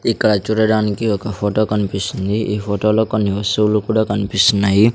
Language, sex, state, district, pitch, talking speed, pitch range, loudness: Telugu, male, Andhra Pradesh, Sri Satya Sai, 105 Hz, 145 wpm, 100-110 Hz, -17 LUFS